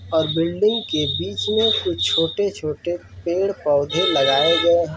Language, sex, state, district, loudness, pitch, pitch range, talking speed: Hindi, male, Uttar Pradesh, Varanasi, -19 LUFS, 170 Hz, 155-200 Hz, 145 wpm